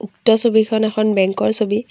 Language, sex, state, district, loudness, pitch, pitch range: Assamese, female, Assam, Kamrup Metropolitan, -16 LUFS, 215 Hz, 210-220 Hz